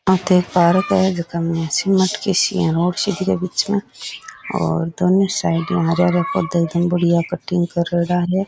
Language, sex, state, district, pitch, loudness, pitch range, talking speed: Rajasthani, male, Rajasthan, Nagaur, 180 Hz, -18 LUFS, 170-190 Hz, 170 wpm